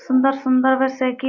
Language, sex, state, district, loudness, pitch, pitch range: Hindi, female, Jharkhand, Sahebganj, -18 LUFS, 265 Hz, 260-265 Hz